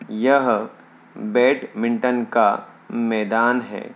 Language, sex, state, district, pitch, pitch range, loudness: Hindi, male, Uttar Pradesh, Hamirpur, 120 Hz, 115-125 Hz, -20 LUFS